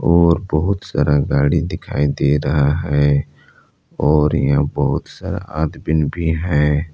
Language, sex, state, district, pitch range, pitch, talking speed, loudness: Hindi, male, Jharkhand, Palamu, 70-80 Hz, 75 Hz, 130 wpm, -17 LUFS